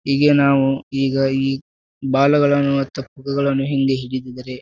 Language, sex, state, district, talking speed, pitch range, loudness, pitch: Kannada, male, Karnataka, Bijapur, 105 wpm, 135-140 Hz, -18 LUFS, 135 Hz